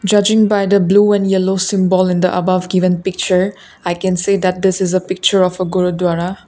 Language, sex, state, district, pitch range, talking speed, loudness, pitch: English, female, Assam, Kamrup Metropolitan, 185-195 Hz, 230 wpm, -14 LUFS, 185 Hz